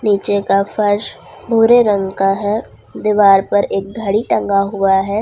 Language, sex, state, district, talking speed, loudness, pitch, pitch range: Hindi, female, Jharkhand, Ranchi, 160 wpm, -15 LUFS, 205 Hz, 195-210 Hz